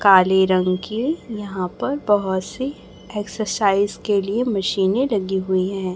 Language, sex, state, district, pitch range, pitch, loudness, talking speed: Hindi, male, Chhattisgarh, Raipur, 190-215 Hz, 200 Hz, -21 LUFS, 140 wpm